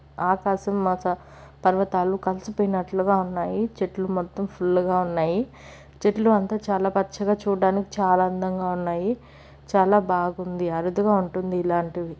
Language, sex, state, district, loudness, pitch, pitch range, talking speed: Telugu, female, Andhra Pradesh, Chittoor, -24 LUFS, 185 Hz, 180-200 Hz, 115 wpm